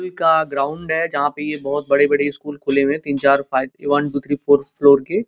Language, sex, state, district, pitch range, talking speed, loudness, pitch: Hindi, male, Uttar Pradesh, Gorakhpur, 140-150 Hz, 240 wpm, -18 LUFS, 145 Hz